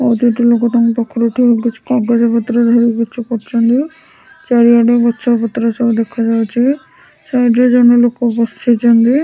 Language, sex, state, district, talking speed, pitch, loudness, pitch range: Odia, female, Odisha, Sambalpur, 135 wpm, 235 Hz, -12 LUFS, 230-245 Hz